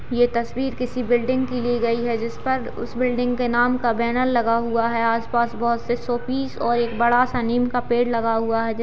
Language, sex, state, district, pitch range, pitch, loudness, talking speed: Hindi, female, Bihar, Gaya, 235-245 Hz, 240 Hz, -22 LUFS, 210 wpm